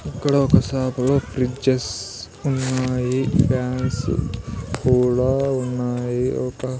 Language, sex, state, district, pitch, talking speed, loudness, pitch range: Telugu, male, Andhra Pradesh, Sri Satya Sai, 130 Hz, 80 wpm, -21 LUFS, 125-130 Hz